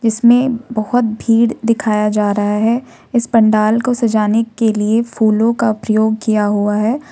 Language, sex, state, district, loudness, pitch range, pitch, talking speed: Hindi, female, Jharkhand, Ranchi, -14 LUFS, 215-235 Hz, 225 Hz, 160 wpm